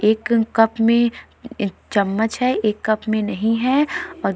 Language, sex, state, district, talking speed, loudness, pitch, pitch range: Hindi, female, Uttar Pradesh, Jalaun, 180 wpm, -19 LUFS, 225 Hz, 215-250 Hz